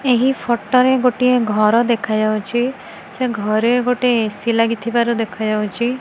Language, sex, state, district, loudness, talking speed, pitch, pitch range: Odia, female, Odisha, Khordha, -17 LUFS, 120 wpm, 235 Hz, 215-250 Hz